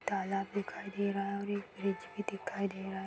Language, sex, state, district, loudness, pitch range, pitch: Hindi, female, Uttar Pradesh, Gorakhpur, -37 LUFS, 195-200 Hz, 200 Hz